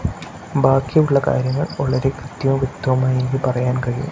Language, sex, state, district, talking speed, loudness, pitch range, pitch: Malayalam, male, Kerala, Kasaragod, 115 wpm, -19 LUFS, 130-135 Hz, 135 Hz